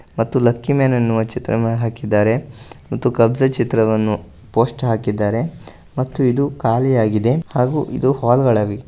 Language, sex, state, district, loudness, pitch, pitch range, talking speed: Kannada, male, Karnataka, Gulbarga, -18 LUFS, 120 Hz, 110-130 Hz, 110 wpm